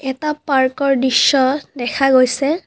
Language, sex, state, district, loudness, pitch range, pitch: Assamese, female, Assam, Kamrup Metropolitan, -16 LUFS, 260-285 Hz, 270 Hz